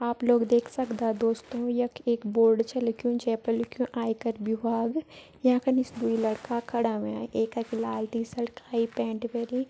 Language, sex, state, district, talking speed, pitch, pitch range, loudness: Garhwali, female, Uttarakhand, Tehri Garhwal, 185 wpm, 235 Hz, 230-240 Hz, -28 LUFS